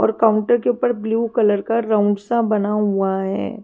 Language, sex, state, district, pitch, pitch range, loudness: Hindi, female, Himachal Pradesh, Shimla, 220 Hz, 205-235 Hz, -19 LUFS